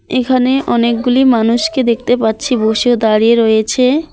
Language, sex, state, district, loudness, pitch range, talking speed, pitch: Bengali, female, West Bengal, Alipurduar, -12 LUFS, 225-255 Hz, 115 wpm, 240 Hz